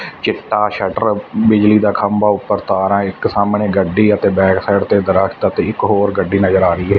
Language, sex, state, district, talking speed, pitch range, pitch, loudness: Punjabi, male, Punjab, Fazilka, 190 wpm, 95-105 Hz, 100 Hz, -14 LUFS